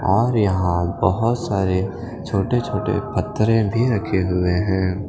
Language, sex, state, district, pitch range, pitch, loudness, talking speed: Hindi, male, Punjab, Fazilka, 95-115 Hz, 100 Hz, -20 LUFS, 130 wpm